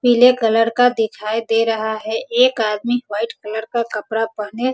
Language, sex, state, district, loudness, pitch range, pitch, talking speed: Hindi, female, Bihar, Sitamarhi, -18 LUFS, 220-240 Hz, 225 Hz, 190 wpm